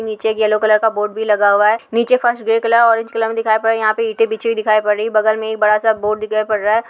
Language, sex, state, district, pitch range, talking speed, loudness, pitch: Hindi, female, Uttar Pradesh, Hamirpur, 215-225 Hz, 320 wpm, -15 LUFS, 220 Hz